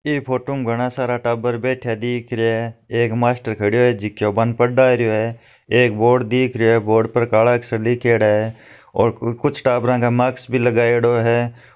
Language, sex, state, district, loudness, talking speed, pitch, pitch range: Marwari, male, Rajasthan, Nagaur, -18 LUFS, 195 wpm, 120 Hz, 115-125 Hz